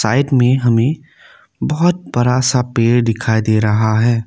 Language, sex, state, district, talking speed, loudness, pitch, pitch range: Hindi, male, Assam, Kamrup Metropolitan, 155 wpm, -15 LUFS, 120 Hz, 115-130 Hz